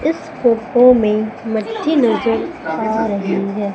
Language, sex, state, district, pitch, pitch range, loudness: Hindi, female, Madhya Pradesh, Umaria, 225 Hz, 215-245 Hz, -16 LUFS